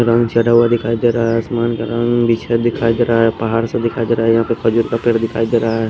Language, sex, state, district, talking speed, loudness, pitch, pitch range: Hindi, male, Bihar, Patna, 285 wpm, -15 LUFS, 115 Hz, 115-120 Hz